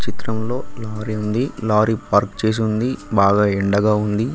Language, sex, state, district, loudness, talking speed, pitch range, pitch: Telugu, male, Telangana, Mahabubabad, -19 LUFS, 125 wpm, 105-110 Hz, 110 Hz